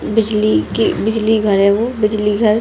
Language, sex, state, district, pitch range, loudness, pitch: Hindi, female, Bihar, Darbhanga, 205-220 Hz, -15 LUFS, 215 Hz